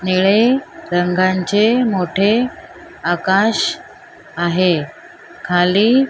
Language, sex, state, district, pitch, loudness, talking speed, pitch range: Marathi, female, Maharashtra, Mumbai Suburban, 200 Hz, -16 LUFS, 70 wpm, 185-255 Hz